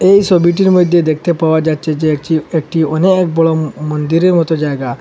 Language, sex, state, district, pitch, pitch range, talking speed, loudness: Bengali, male, Assam, Hailakandi, 160 Hz, 155-175 Hz, 180 wpm, -13 LUFS